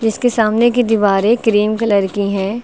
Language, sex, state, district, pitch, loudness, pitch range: Hindi, female, Uttar Pradesh, Lucknow, 220 Hz, -14 LUFS, 200-230 Hz